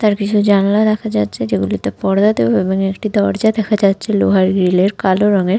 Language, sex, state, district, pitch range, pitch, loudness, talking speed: Bengali, female, West Bengal, Malda, 190-210 Hz, 200 Hz, -15 LUFS, 180 wpm